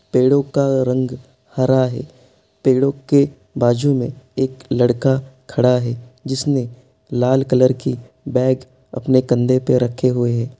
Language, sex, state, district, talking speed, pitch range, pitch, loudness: Hindi, male, Bihar, Sitamarhi, 135 wpm, 125-135 Hz, 130 Hz, -18 LUFS